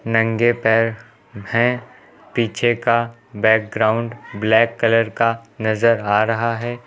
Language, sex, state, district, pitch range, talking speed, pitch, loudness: Hindi, male, Uttar Pradesh, Lucknow, 110-115 Hz, 115 wpm, 115 Hz, -18 LUFS